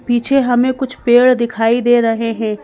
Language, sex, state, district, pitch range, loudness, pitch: Hindi, female, Madhya Pradesh, Bhopal, 230-255 Hz, -14 LUFS, 240 Hz